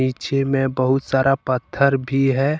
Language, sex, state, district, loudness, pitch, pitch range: Hindi, male, Jharkhand, Ranchi, -19 LUFS, 135 Hz, 130-135 Hz